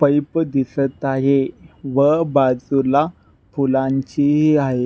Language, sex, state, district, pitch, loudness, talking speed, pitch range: Marathi, male, Maharashtra, Nagpur, 140 Hz, -18 LUFS, 100 wpm, 135-145 Hz